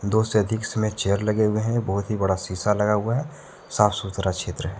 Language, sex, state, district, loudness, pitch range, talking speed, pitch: Hindi, male, Jharkhand, Deoghar, -23 LUFS, 95-110 Hz, 235 wpm, 105 Hz